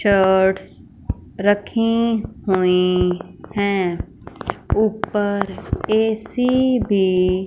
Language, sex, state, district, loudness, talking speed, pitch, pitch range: Hindi, female, Punjab, Fazilka, -19 LUFS, 55 wpm, 200 Hz, 180-220 Hz